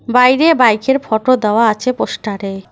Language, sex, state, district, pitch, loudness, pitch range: Bengali, female, West Bengal, Cooch Behar, 230 Hz, -13 LUFS, 210-255 Hz